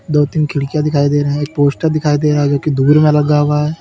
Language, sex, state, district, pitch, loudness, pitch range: Hindi, male, Uttar Pradesh, Lalitpur, 150 Hz, -14 LUFS, 145-150 Hz